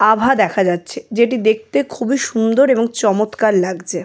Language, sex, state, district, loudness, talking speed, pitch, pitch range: Bengali, female, West Bengal, Jalpaiguri, -16 LUFS, 150 wpm, 220 Hz, 190-235 Hz